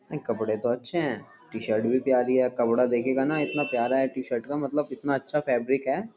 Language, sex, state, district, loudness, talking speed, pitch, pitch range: Hindi, male, Uttar Pradesh, Jyotiba Phule Nagar, -26 LUFS, 225 wpm, 130 Hz, 120-145 Hz